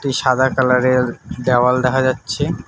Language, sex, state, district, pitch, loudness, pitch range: Bengali, male, West Bengal, Alipurduar, 130 Hz, -16 LUFS, 125-130 Hz